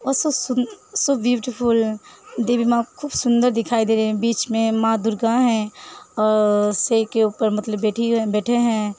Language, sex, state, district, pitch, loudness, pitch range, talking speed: Hindi, female, Uttar Pradesh, Hamirpur, 230 Hz, -20 LUFS, 220-250 Hz, 160 wpm